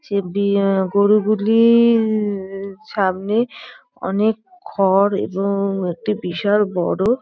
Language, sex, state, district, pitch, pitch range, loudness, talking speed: Bengali, female, West Bengal, North 24 Parganas, 200 Hz, 195-215 Hz, -18 LUFS, 90 wpm